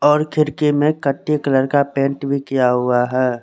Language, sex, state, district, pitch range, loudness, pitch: Hindi, male, Chandigarh, Chandigarh, 130-150 Hz, -17 LUFS, 140 Hz